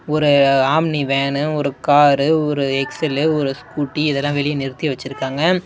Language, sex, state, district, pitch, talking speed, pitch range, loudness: Tamil, male, Tamil Nadu, Namakkal, 145 Hz, 140 wpm, 140-150 Hz, -17 LUFS